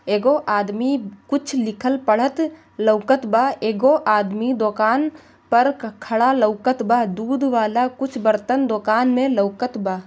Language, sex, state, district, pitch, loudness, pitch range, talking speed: Bhojpuri, female, Bihar, Gopalganj, 240 Hz, -19 LUFS, 215-265 Hz, 130 wpm